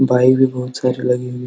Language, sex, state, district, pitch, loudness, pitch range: Hindi, male, Uttar Pradesh, Hamirpur, 125 Hz, -16 LUFS, 125-130 Hz